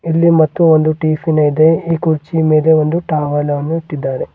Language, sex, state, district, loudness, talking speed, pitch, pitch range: Kannada, male, Karnataka, Bidar, -13 LUFS, 165 wpm, 160 Hz, 155-165 Hz